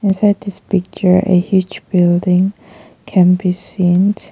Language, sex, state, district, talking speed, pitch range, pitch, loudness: English, female, Nagaland, Kohima, 125 wpm, 180-200 Hz, 185 Hz, -14 LUFS